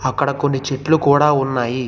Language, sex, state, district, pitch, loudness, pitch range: Telugu, male, Telangana, Hyderabad, 140 Hz, -17 LUFS, 130-145 Hz